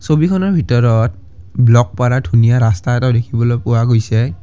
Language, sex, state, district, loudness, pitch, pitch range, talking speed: Assamese, male, Assam, Kamrup Metropolitan, -14 LUFS, 120 Hz, 115-125 Hz, 135 wpm